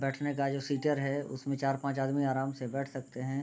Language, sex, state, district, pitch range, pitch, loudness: Hindi, male, Bihar, Gopalganj, 135-140 Hz, 140 Hz, -33 LUFS